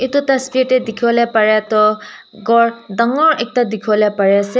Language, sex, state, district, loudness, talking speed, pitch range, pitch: Nagamese, female, Nagaland, Kohima, -14 LUFS, 155 wpm, 215-255 Hz, 230 Hz